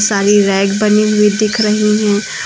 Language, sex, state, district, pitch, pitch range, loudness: Hindi, female, Uttar Pradesh, Lucknow, 210 Hz, 205-215 Hz, -12 LUFS